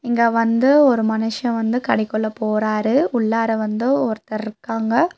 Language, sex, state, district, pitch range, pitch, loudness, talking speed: Tamil, female, Tamil Nadu, Nilgiris, 220-240 Hz, 225 Hz, -19 LUFS, 125 wpm